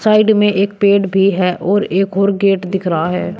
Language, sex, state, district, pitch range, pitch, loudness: Hindi, male, Uttar Pradesh, Shamli, 190-205 Hz, 195 Hz, -14 LUFS